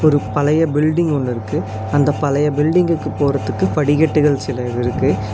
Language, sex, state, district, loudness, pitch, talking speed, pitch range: Tamil, male, Tamil Nadu, Nilgiris, -17 LUFS, 145 Hz, 125 wpm, 120-150 Hz